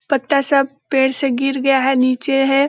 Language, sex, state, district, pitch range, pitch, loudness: Hindi, female, Chhattisgarh, Balrampur, 265-275 Hz, 270 Hz, -16 LUFS